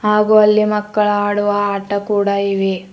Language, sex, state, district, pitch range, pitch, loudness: Kannada, female, Karnataka, Bidar, 200-210 Hz, 205 Hz, -15 LUFS